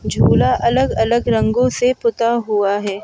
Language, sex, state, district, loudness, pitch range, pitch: Hindi, male, Madhya Pradesh, Bhopal, -16 LUFS, 215-245 Hz, 235 Hz